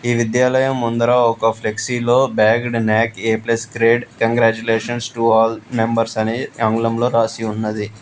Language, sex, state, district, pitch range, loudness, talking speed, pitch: Telugu, male, Telangana, Hyderabad, 110-120 Hz, -17 LUFS, 125 wpm, 115 Hz